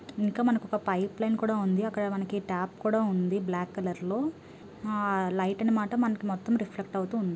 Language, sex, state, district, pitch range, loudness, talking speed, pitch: Telugu, female, Andhra Pradesh, Guntur, 190-220 Hz, -29 LUFS, 180 wpm, 205 Hz